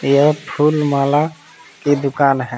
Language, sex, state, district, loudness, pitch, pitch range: Hindi, male, Jharkhand, Palamu, -16 LUFS, 145 Hz, 140-150 Hz